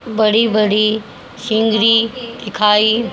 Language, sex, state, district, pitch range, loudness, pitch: Hindi, female, Haryana, Rohtak, 215-230 Hz, -14 LUFS, 220 Hz